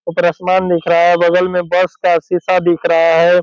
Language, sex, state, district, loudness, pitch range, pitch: Hindi, male, Bihar, Purnia, -13 LUFS, 170-180 Hz, 175 Hz